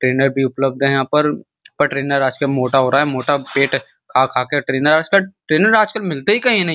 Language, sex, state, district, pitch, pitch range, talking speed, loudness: Hindi, male, Uttar Pradesh, Muzaffarnagar, 140 Hz, 135-160 Hz, 220 wpm, -16 LUFS